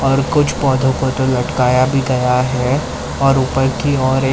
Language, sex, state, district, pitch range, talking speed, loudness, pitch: Hindi, male, Maharashtra, Mumbai Suburban, 125-135 Hz, 195 wpm, -15 LUFS, 130 Hz